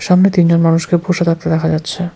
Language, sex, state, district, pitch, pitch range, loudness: Bengali, male, West Bengal, Cooch Behar, 170 Hz, 165-180 Hz, -13 LUFS